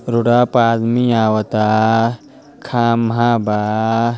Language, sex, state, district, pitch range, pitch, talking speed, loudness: Bhojpuri, male, Uttar Pradesh, Ghazipur, 110-120 Hz, 115 Hz, 85 wpm, -15 LUFS